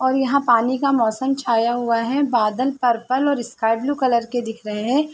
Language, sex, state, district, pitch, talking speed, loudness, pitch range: Hindi, female, Bihar, Sitamarhi, 245 Hz, 210 wpm, -20 LUFS, 230-270 Hz